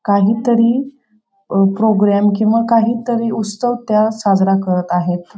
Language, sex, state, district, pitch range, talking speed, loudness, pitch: Marathi, female, Maharashtra, Pune, 195-230 Hz, 100 wpm, -15 LUFS, 215 Hz